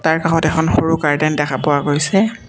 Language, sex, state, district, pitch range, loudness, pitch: Assamese, male, Assam, Kamrup Metropolitan, 145-165 Hz, -16 LUFS, 160 Hz